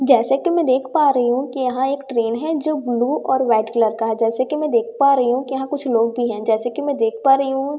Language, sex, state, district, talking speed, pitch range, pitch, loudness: Hindi, female, Bihar, Katihar, 310 wpm, 230-275 Hz, 255 Hz, -19 LUFS